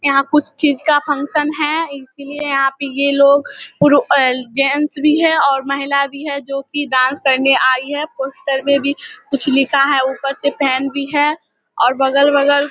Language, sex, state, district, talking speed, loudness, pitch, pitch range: Hindi, female, Bihar, Vaishali, 185 wpm, -15 LUFS, 280 Hz, 275-290 Hz